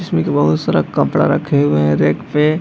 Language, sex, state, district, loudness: Hindi, male, Bihar, Madhepura, -15 LUFS